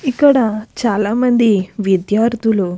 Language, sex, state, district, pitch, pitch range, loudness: Telugu, female, Andhra Pradesh, Krishna, 220 Hz, 205-240 Hz, -15 LUFS